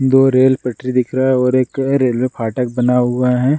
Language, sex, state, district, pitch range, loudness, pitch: Hindi, male, Bihar, Gaya, 125-130 Hz, -15 LUFS, 125 Hz